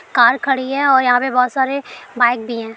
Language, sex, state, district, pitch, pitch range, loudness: Hindi, female, Bihar, Araria, 255 Hz, 240-270 Hz, -15 LUFS